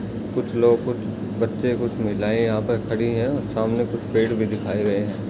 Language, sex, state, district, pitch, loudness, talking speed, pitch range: Hindi, male, Bihar, Darbhanga, 110 Hz, -23 LUFS, 190 wpm, 105-115 Hz